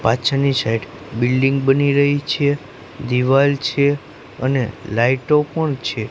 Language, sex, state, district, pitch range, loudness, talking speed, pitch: Gujarati, male, Gujarat, Gandhinagar, 125-145 Hz, -18 LUFS, 120 wpm, 135 Hz